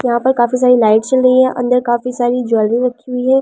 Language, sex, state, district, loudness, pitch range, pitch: Hindi, female, Delhi, New Delhi, -13 LUFS, 240-255 Hz, 250 Hz